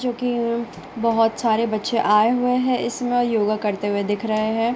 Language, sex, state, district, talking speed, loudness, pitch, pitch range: Hindi, female, Bihar, Darbhanga, 200 wpm, -21 LUFS, 230 Hz, 215-245 Hz